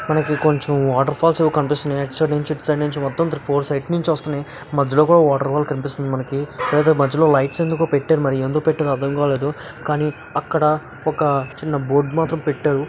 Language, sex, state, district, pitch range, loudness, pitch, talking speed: Telugu, male, Andhra Pradesh, Visakhapatnam, 140-155 Hz, -19 LUFS, 150 Hz, 170 wpm